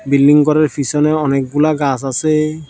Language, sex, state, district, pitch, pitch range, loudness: Bengali, male, Tripura, South Tripura, 150 Hz, 140-155 Hz, -14 LUFS